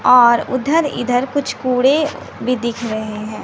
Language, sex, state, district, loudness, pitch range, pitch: Hindi, female, Bihar, West Champaran, -17 LUFS, 235-270 Hz, 250 Hz